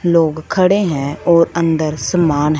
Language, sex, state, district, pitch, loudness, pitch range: Hindi, female, Punjab, Fazilka, 165 Hz, -15 LUFS, 155-170 Hz